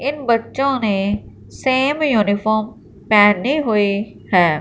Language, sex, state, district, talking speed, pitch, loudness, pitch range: Hindi, female, Punjab, Fazilka, 105 wpm, 215 Hz, -17 LUFS, 205-265 Hz